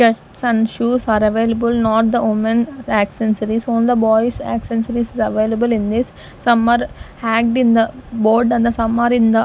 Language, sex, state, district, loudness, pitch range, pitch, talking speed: English, female, Punjab, Fazilka, -16 LUFS, 220-235 Hz, 230 Hz, 170 wpm